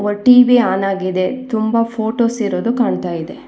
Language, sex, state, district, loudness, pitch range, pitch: Kannada, female, Karnataka, Bangalore, -15 LUFS, 200-245 Hz, 225 Hz